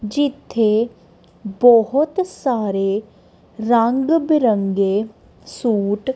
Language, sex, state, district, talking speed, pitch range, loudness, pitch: Punjabi, female, Punjab, Kapurthala, 70 wpm, 205-260 Hz, -18 LUFS, 225 Hz